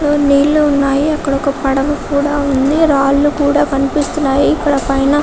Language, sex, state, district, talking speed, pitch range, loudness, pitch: Telugu, female, Telangana, Karimnagar, 160 wpm, 275-295 Hz, -13 LUFS, 285 Hz